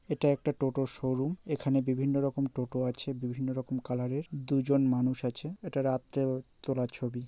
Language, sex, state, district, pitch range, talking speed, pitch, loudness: Bengali, male, West Bengal, North 24 Parganas, 130-140 Hz, 190 wpm, 135 Hz, -32 LUFS